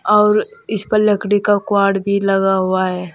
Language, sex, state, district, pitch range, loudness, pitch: Hindi, female, Uttar Pradesh, Saharanpur, 195-210 Hz, -16 LUFS, 200 Hz